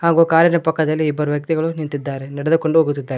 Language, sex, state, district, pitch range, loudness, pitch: Kannada, male, Karnataka, Koppal, 145-165 Hz, -18 LUFS, 155 Hz